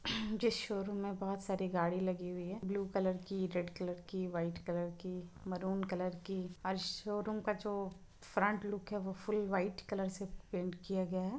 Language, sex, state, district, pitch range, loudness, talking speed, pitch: Hindi, female, Chhattisgarh, Bilaspur, 180-200 Hz, -39 LUFS, 195 wpm, 190 Hz